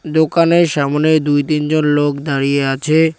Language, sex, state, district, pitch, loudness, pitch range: Bengali, male, West Bengal, Cooch Behar, 150 Hz, -14 LUFS, 145-160 Hz